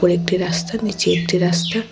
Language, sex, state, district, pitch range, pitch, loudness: Bengali, female, Tripura, West Tripura, 175-205 Hz, 180 Hz, -19 LUFS